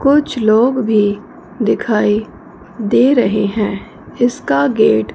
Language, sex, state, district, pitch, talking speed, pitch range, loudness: Hindi, female, Punjab, Fazilka, 215 Hz, 115 wpm, 205-245 Hz, -15 LUFS